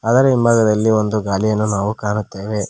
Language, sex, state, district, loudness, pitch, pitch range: Kannada, male, Karnataka, Koppal, -17 LUFS, 110 Hz, 105-110 Hz